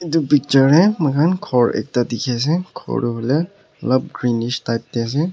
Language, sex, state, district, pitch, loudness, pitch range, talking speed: Nagamese, male, Nagaland, Kohima, 130 Hz, -18 LUFS, 120-160 Hz, 180 wpm